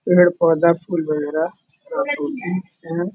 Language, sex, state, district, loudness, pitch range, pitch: Hindi, male, Uttar Pradesh, Budaun, -20 LUFS, 165-185 Hz, 175 Hz